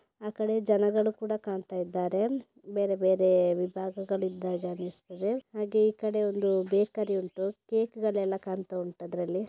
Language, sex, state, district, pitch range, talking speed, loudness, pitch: Kannada, female, Karnataka, Dakshina Kannada, 185-215 Hz, 125 wpm, -30 LUFS, 195 Hz